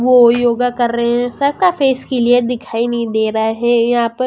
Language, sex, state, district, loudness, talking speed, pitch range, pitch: Hindi, female, Haryana, Jhajjar, -14 LUFS, 240 wpm, 235-250 Hz, 240 Hz